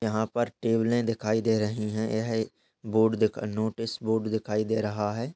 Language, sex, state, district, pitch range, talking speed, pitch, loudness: Hindi, male, Uttar Pradesh, Gorakhpur, 110-115 Hz, 190 wpm, 110 Hz, -28 LUFS